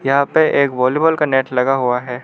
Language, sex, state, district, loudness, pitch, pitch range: Hindi, male, Arunachal Pradesh, Lower Dibang Valley, -15 LUFS, 135 Hz, 125-145 Hz